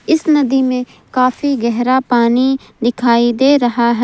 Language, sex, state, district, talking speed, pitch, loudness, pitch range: Hindi, female, Jharkhand, Ranchi, 150 wpm, 255 Hz, -14 LUFS, 240-265 Hz